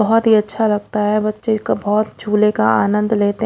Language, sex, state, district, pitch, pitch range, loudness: Hindi, female, Odisha, Khordha, 215 Hz, 210-220 Hz, -16 LUFS